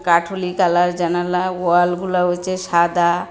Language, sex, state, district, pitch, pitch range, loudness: Bengali, female, Tripura, West Tripura, 175 Hz, 175-180 Hz, -18 LUFS